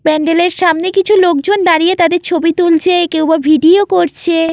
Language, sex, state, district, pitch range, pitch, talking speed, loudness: Bengali, female, West Bengal, Jalpaiguri, 325-360 Hz, 340 Hz, 170 wpm, -11 LUFS